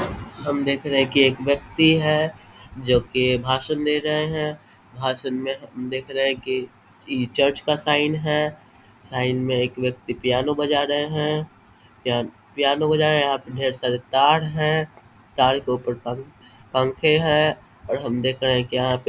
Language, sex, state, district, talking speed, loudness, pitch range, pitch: Hindi, male, Bihar, Vaishali, 175 wpm, -22 LUFS, 125-150 Hz, 130 Hz